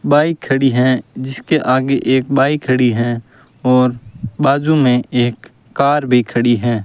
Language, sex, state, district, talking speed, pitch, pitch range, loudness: Hindi, male, Rajasthan, Bikaner, 150 wpm, 130 Hz, 120-135 Hz, -15 LUFS